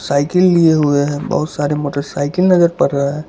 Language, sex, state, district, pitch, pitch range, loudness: Hindi, male, Gujarat, Valsad, 145 Hz, 145-170 Hz, -15 LUFS